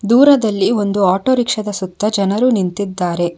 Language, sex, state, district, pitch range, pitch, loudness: Kannada, female, Karnataka, Bangalore, 190-230 Hz, 205 Hz, -15 LUFS